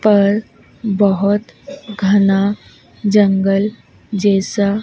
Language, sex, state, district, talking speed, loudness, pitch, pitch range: Hindi, female, Madhya Pradesh, Dhar, 60 wpm, -16 LUFS, 205 Hz, 200-210 Hz